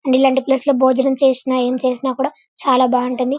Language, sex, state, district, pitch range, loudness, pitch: Telugu, female, Telangana, Karimnagar, 255-270 Hz, -16 LUFS, 260 Hz